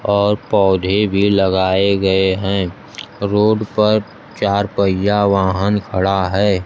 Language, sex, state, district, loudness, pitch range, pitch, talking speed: Hindi, male, Bihar, Kaimur, -16 LUFS, 95-105 Hz, 100 Hz, 115 wpm